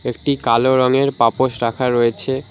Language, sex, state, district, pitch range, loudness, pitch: Bengali, male, West Bengal, Alipurduar, 120-135 Hz, -17 LUFS, 130 Hz